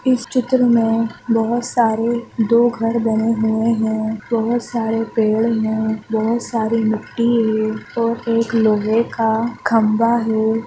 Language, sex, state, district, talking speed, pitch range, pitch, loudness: Hindi, female, Chhattisgarh, Raigarh, 135 wpm, 220-235 Hz, 225 Hz, -18 LUFS